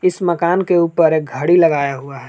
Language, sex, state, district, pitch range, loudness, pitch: Hindi, male, Jharkhand, Palamu, 145-175 Hz, -15 LUFS, 165 Hz